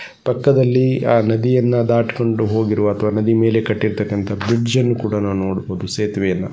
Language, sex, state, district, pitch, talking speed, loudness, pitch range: Kannada, male, Karnataka, Gulbarga, 110 Hz, 130 wpm, -17 LUFS, 105-120 Hz